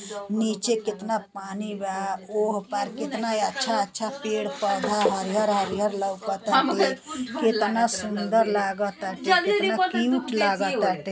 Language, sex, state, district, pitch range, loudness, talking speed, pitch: Bhojpuri, female, Uttar Pradesh, Gorakhpur, 200-225 Hz, -25 LUFS, 110 wpm, 210 Hz